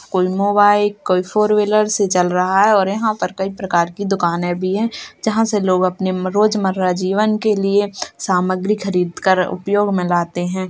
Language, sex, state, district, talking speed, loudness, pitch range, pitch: Hindi, male, Uttar Pradesh, Jalaun, 185 wpm, -17 LUFS, 185-205 Hz, 195 Hz